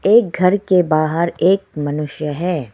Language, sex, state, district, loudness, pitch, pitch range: Hindi, female, Arunachal Pradesh, Lower Dibang Valley, -17 LUFS, 170 Hz, 150-185 Hz